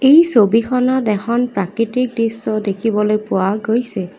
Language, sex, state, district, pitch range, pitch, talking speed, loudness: Assamese, female, Assam, Kamrup Metropolitan, 210-245 Hz, 225 Hz, 115 wpm, -16 LUFS